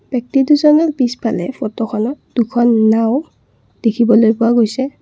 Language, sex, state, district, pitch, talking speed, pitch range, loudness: Assamese, female, Assam, Kamrup Metropolitan, 235 Hz, 105 wpm, 225-265 Hz, -14 LUFS